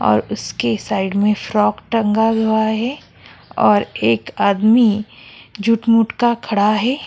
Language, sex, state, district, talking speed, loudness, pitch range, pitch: Hindi, female, Goa, North and South Goa, 135 wpm, -17 LUFS, 200-230 Hz, 220 Hz